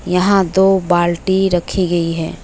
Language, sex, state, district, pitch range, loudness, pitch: Hindi, female, West Bengal, Alipurduar, 175-190 Hz, -15 LUFS, 180 Hz